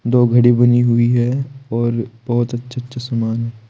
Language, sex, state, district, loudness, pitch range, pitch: Hindi, male, Uttar Pradesh, Saharanpur, -17 LUFS, 115-125 Hz, 120 Hz